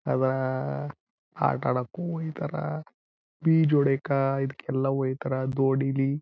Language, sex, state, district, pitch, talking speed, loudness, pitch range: Kannada, male, Karnataka, Chamarajanagar, 135 Hz, 95 wpm, -27 LUFS, 130-145 Hz